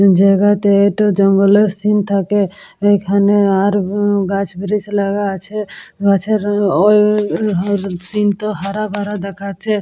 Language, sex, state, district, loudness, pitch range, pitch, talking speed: Bengali, female, West Bengal, Purulia, -15 LUFS, 195-205 Hz, 200 Hz, 110 wpm